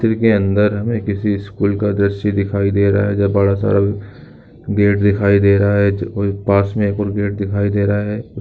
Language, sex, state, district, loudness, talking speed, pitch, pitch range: Hindi, male, Andhra Pradesh, Visakhapatnam, -16 LUFS, 190 wpm, 100 Hz, 100-105 Hz